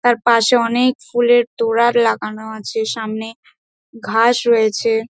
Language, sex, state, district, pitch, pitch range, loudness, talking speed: Bengali, female, West Bengal, Dakshin Dinajpur, 230 Hz, 225-240 Hz, -16 LUFS, 120 wpm